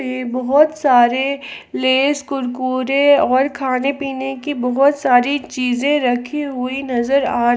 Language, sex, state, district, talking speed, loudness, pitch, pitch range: Hindi, female, Jharkhand, Palamu, 135 wpm, -17 LUFS, 265 Hz, 255-280 Hz